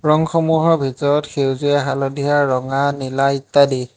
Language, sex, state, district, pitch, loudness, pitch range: Assamese, male, Assam, Hailakandi, 140 Hz, -17 LUFS, 135-145 Hz